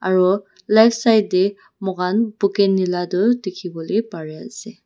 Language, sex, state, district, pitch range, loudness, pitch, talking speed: Nagamese, female, Nagaland, Dimapur, 185-220 Hz, -18 LUFS, 195 Hz, 150 wpm